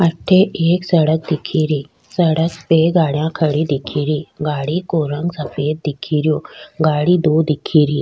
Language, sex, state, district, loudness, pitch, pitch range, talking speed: Rajasthani, female, Rajasthan, Nagaur, -17 LUFS, 155 Hz, 150-165 Hz, 155 wpm